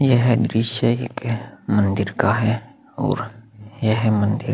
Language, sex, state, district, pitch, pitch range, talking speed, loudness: Hindi, male, Chhattisgarh, Sukma, 115 Hz, 110-120 Hz, 130 wpm, -21 LUFS